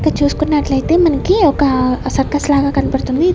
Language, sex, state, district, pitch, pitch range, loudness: Telugu, female, Andhra Pradesh, Sri Satya Sai, 290 Hz, 275-320 Hz, -14 LUFS